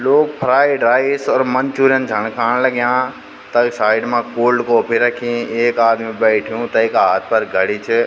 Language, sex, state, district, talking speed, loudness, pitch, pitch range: Garhwali, male, Uttarakhand, Tehri Garhwal, 165 wpm, -16 LUFS, 120 Hz, 115-130 Hz